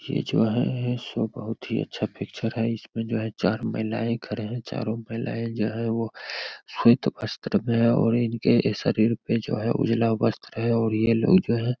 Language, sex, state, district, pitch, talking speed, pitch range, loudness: Hindi, male, Bihar, Begusarai, 115 Hz, 205 wpm, 110-115 Hz, -25 LUFS